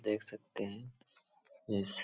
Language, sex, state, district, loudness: Hindi, male, Uttar Pradesh, Etah, -40 LUFS